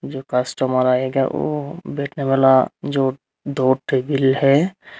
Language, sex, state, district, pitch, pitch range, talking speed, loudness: Hindi, male, Tripura, Unakoti, 135 Hz, 130-140 Hz, 120 wpm, -19 LUFS